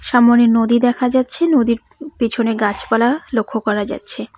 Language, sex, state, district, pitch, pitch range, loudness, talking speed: Bengali, female, West Bengal, Cooch Behar, 235 Hz, 225-250 Hz, -16 LUFS, 150 wpm